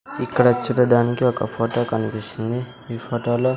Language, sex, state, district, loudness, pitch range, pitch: Telugu, male, Andhra Pradesh, Sri Satya Sai, -21 LUFS, 115-125 Hz, 120 Hz